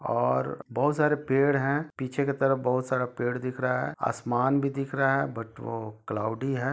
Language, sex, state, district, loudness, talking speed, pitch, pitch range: Hindi, male, Jharkhand, Sahebganj, -28 LUFS, 205 wpm, 130 Hz, 120-140 Hz